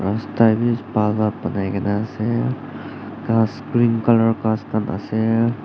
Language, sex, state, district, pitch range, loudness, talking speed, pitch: Nagamese, male, Nagaland, Dimapur, 105-115 Hz, -20 LUFS, 160 wpm, 110 Hz